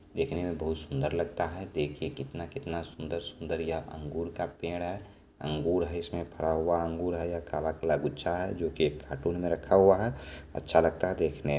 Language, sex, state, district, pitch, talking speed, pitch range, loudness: Maithili, male, Bihar, Supaul, 85 Hz, 185 wpm, 80-85 Hz, -31 LUFS